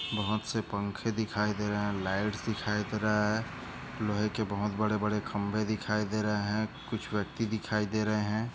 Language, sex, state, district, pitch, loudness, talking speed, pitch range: Hindi, male, Maharashtra, Aurangabad, 105 Hz, -32 LUFS, 205 wpm, 105-110 Hz